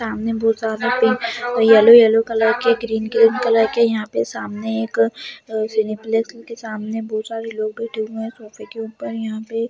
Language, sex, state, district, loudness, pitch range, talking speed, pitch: Hindi, female, Bihar, Jamui, -18 LUFS, 220-230 Hz, 160 wpm, 225 Hz